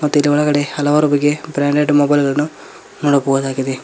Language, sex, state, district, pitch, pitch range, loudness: Kannada, male, Karnataka, Koppal, 145 Hz, 140-150 Hz, -15 LUFS